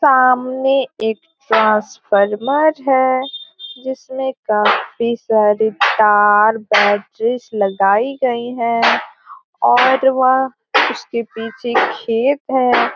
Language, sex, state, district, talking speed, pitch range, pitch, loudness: Hindi, female, Bihar, Gopalganj, 85 wpm, 215-265 Hz, 240 Hz, -15 LUFS